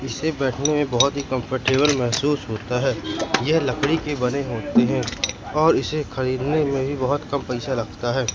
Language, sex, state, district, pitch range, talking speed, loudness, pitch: Hindi, male, Madhya Pradesh, Katni, 125-145 Hz, 175 wpm, -22 LUFS, 135 Hz